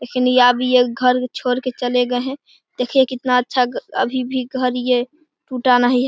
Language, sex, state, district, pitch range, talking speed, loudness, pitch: Hindi, male, Bihar, Begusarai, 250-260 Hz, 190 wpm, -18 LUFS, 250 Hz